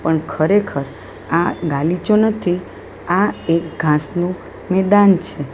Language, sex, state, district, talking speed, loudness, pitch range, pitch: Gujarati, female, Gujarat, Valsad, 100 wpm, -17 LUFS, 155-190 Hz, 175 Hz